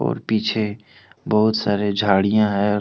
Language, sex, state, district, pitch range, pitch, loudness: Hindi, male, Jharkhand, Deoghar, 100-110 Hz, 105 Hz, -19 LUFS